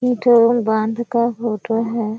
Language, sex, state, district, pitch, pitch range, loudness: Hindi, female, Bihar, Kishanganj, 230 Hz, 225-240 Hz, -17 LUFS